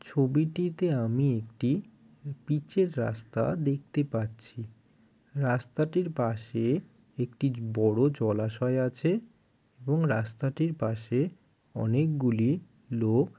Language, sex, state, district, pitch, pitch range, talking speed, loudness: Bengali, male, West Bengal, Jalpaiguri, 130 Hz, 115-150 Hz, 80 wpm, -29 LUFS